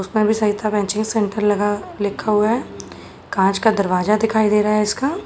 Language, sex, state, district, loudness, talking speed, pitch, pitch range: Hindi, female, Uttar Pradesh, Jalaun, -18 LUFS, 185 wpm, 210 Hz, 205-215 Hz